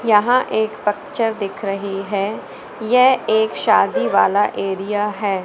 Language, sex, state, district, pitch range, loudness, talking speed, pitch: Hindi, female, Madhya Pradesh, Umaria, 200-225 Hz, -18 LUFS, 130 wpm, 210 Hz